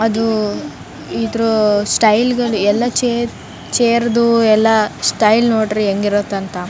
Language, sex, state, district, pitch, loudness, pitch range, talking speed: Kannada, female, Karnataka, Raichur, 220 Hz, -15 LUFS, 210-235 Hz, 100 wpm